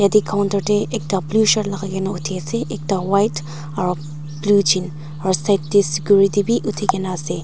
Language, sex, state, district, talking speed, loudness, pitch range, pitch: Nagamese, female, Nagaland, Dimapur, 185 wpm, -19 LUFS, 170-200 Hz, 190 Hz